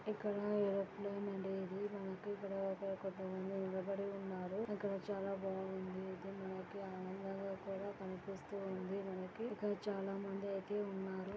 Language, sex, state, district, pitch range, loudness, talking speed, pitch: Telugu, female, Andhra Pradesh, Anantapur, 190-200 Hz, -44 LUFS, 115 wpm, 195 Hz